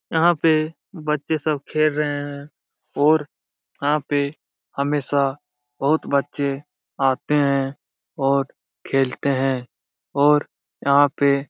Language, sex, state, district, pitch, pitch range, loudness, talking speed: Hindi, male, Bihar, Supaul, 145 Hz, 140-150 Hz, -21 LUFS, 115 wpm